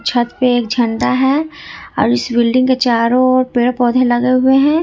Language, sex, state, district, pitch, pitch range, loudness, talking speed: Hindi, female, Jharkhand, Ranchi, 250 Hz, 240-255 Hz, -14 LUFS, 200 wpm